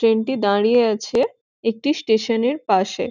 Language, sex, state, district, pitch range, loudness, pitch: Bengali, female, West Bengal, Jhargram, 215-285 Hz, -20 LUFS, 230 Hz